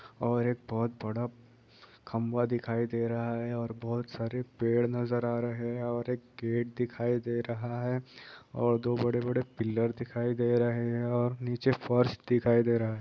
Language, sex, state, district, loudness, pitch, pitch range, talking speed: Hindi, male, Bihar, East Champaran, -31 LUFS, 120 Hz, 115-120 Hz, 180 wpm